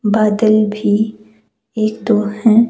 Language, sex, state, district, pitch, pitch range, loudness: Hindi, female, Himachal Pradesh, Shimla, 215 Hz, 210-220 Hz, -15 LUFS